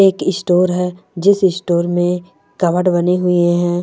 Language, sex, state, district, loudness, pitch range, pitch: Hindi, male, Goa, North and South Goa, -15 LUFS, 175-185 Hz, 180 Hz